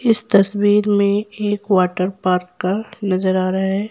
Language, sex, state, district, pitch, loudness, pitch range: Hindi, female, Jharkhand, Ranchi, 200 Hz, -17 LUFS, 185-205 Hz